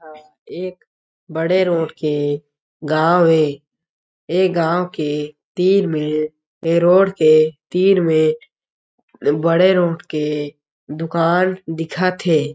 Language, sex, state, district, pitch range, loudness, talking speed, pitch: Chhattisgarhi, male, Chhattisgarh, Jashpur, 155-180 Hz, -17 LUFS, 110 wpm, 160 Hz